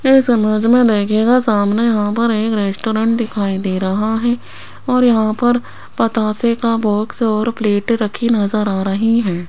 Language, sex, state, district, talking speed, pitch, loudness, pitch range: Hindi, female, Rajasthan, Jaipur, 165 wpm, 220 Hz, -15 LUFS, 210-235 Hz